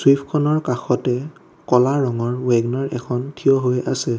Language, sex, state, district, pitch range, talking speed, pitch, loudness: Assamese, male, Assam, Kamrup Metropolitan, 125-140 Hz, 130 wpm, 125 Hz, -20 LUFS